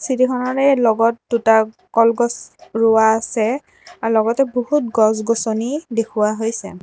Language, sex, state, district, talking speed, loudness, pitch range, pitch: Assamese, female, Assam, Kamrup Metropolitan, 105 wpm, -17 LUFS, 220-255 Hz, 230 Hz